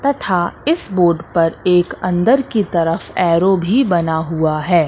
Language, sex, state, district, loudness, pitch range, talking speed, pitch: Hindi, female, Madhya Pradesh, Katni, -16 LUFS, 165-200 Hz, 160 wpm, 175 Hz